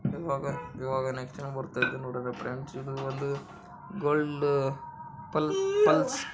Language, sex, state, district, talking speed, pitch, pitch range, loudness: Kannada, male, Karnataka, Bijapur, 95 wpm, 140 Hz, 135-175 Hz, -30 LUFS